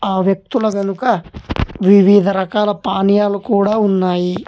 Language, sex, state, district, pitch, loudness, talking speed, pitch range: Telugu, male, Telangana, Hyderabad, 200 Hz, -15 LUFS, 105 wpm, 190-210 Hz